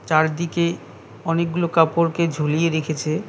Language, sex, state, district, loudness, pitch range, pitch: Bengali, male, West Bengal, Cooch Behar, -21 LUFS, 155-170 Hz, 165 Hz